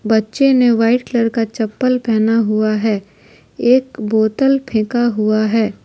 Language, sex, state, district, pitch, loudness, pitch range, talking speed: Hindi, female, Jharkhand, Deoghar, 225 Hz, -15 LUFS, 215-245 Hz, 145 wpm